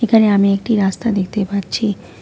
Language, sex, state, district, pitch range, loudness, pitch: Bengali, female, West Bengal, Alipurduar, 195-225 Hz, -16 LUFS, 205 Hz